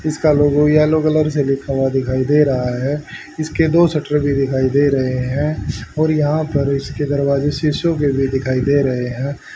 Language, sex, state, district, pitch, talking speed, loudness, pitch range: Hindi, male, Haryana, Rohtak, 145 Hz, 195 wpm, -17 LUFS, 135-155 Hz